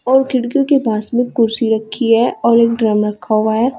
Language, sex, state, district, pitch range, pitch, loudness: Hindi, female, Uttar Pradesh, Saharanpur, 220-245 Hz, 230 Hz, -15 LUFS